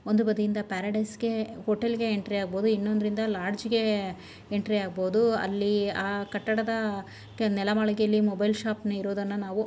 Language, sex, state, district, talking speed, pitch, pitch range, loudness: Kannada, female, Karnataka, Shimoga, 145 wpm, 210 Hz, 200-220 Hz, -28 LUFS